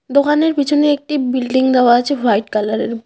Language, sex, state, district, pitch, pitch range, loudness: Bengali, female, West Bengal, Cooch Behar, 260 Hz, 240-290 Hz, -15 LUFS